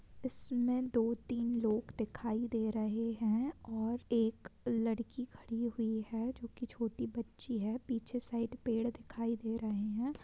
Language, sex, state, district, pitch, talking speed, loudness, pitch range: Hindi, female, Bihar, Sitamarhi, 230 Hz, 165 wpm, -37 LUFS, 225-240 Hz